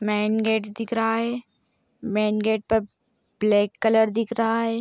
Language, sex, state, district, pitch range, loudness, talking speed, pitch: Hindi, female, Uttar Pradesh, Ghazipur, 215-230 Hz, -23 LUFS, 160 wpm, 220 Hz